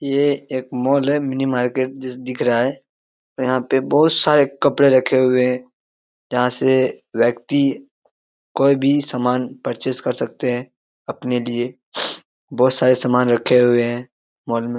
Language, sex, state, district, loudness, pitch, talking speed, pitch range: Hindi, male, Jharkhand, Jamtara, -18 LUFS, 130 Hz, 160 wpm, 125-140 Hz